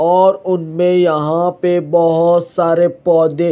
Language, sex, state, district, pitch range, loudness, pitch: Hindi, male, Himachal Pradesh, Shimla, 165-180 Hz, -14 LUFS, 175 Hz